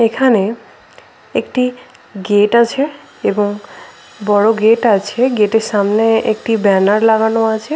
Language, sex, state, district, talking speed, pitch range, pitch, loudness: Bengali, female, West Bengal, Paschim Medinipur, 110 wpm, 205-230 Hz, 220 Hz, -14 LUFS